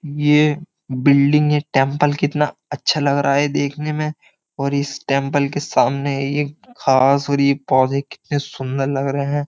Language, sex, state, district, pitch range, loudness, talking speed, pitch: Hindi, male, Uttar Pradesh, Jyotiba Phule Nagar, 140-150 Hz, -18 LUFS, 165 wpm, 140 Hz